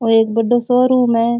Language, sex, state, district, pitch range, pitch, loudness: Rajasthani, male, Rajasthan, Churu, 230-245 Hz, 240 Hz, -14 LUFS